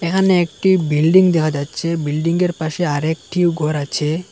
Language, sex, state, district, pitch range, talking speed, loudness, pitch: Bengali, male, Assam, Hailakandi, 155-180 Hz, 140 wpm, -17 LUFS, 165 Hz